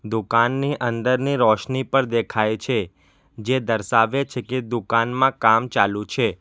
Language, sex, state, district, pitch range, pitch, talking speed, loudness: Gujarati, male, Gujarat, Valsad, 110-130 Hz, 120 Hz, 130 wpm, -21 LUFS